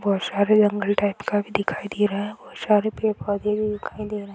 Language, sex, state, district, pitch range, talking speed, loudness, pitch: Hindi, female, Bihar, Gopalganj, 200-210 Hz, 275 wpm, -23 LUFS, 205 Hz